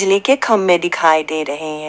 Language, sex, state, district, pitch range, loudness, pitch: Hindi, female, Jharkhand, Ranchi, 155-195 Hz, -15 LUFS, 170 Hz